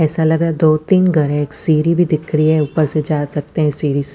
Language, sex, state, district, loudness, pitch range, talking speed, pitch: Hindi, female, Chandigarh, Chandigarh, -15 LUFS, 150-160 Hz, 305 wpm, 155 Hz